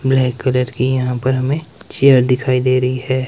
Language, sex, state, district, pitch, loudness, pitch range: Hindi, male, Himachal Pradesh, Shimla, 130 Hz, -16 LUFS, 125-130 Hz